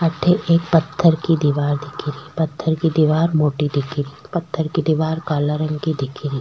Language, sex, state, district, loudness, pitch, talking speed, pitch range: Rajasthani, female, Rajasthan, Churu, -19 LUFS, 155 Hz, 195 wpm, 145-165 Hz